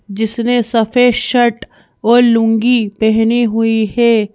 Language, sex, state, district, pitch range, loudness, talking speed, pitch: Hindi, female, Madhya Pradesh, Bhopal, 220-240 Hz, -13 LUFS, 110 wpm, 230 Hz